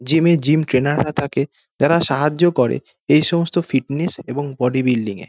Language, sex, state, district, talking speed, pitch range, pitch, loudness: Bengali, male, West Bengal, North 24 Parganas, 180 wpm, 135-165 Hz, 145 Hz, -18 LUFS